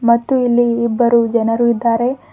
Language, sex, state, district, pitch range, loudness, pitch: Kannada, female, Karnataka, Bidar, 235-240 Hz, -15 LUFS, 235 Hz